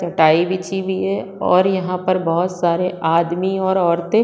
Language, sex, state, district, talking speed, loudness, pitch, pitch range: Hindi, female, Chhattisgarh, Korba, 170 wpm, -18 LUFS, 180 Hz, 170-190 Hz